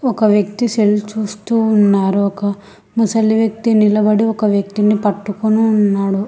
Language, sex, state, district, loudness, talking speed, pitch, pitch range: Telugu, female, Telangana, Hyderabad, -15 LUFS, 125 wpm, 210 Hz, 200-220 Hz